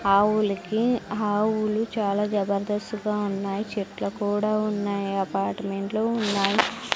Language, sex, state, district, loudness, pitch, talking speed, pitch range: Telugu, female, Andhra Pradesh, Sri Satya Sai, -25 LUFS, 205 Hz, 95 wpm, 200-215 Hz